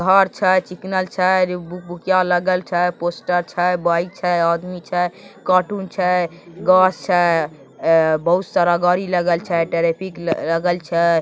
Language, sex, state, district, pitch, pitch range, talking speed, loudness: Maithili, male, Bihar, Begusarai, 175 Hz, 170-185 Hz, 145 wpm, -18 LUFS